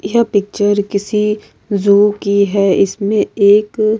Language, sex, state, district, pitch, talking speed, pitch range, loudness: Hindi, female, Uttar Pradesh, Jalaun, 205 Hz, 135 wpm, 200-210 Hz, -14 LUFS